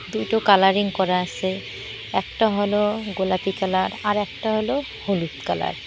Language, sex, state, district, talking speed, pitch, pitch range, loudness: Bengali, female, West Bengal, Cooch Behar, 135 wpm, 200 Hz, 190-210 Hz, -22 LUFS